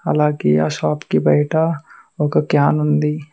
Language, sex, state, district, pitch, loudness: Telugu, male, Telangana, Mahabubabad, 150 Hz, -17 LUFS